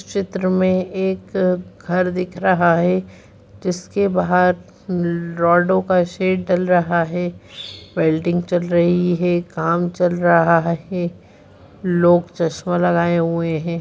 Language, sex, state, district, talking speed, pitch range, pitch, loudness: Hindi, female, Chhattisgarh, Raigarh, 120 wpm, 170-185 Hz, 175 Hz, -18 LUFS